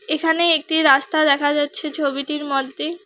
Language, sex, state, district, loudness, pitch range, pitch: Bengali, female, West Bengal, Alipurduar, -18 LUFS, 285-320 Hz, 300 Hz